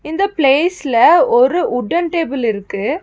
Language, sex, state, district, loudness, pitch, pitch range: Tamil, female, Tamil Nadu, Nilgiris, -14 LUFS, 310 Hz, 245-350 Hz